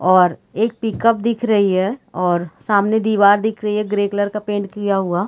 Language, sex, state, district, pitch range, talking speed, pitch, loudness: Hindi, female, Chhattisgarh, Bilaspur, 190-220 Hz, 215 wpm, 205 Hz, -18 LUFS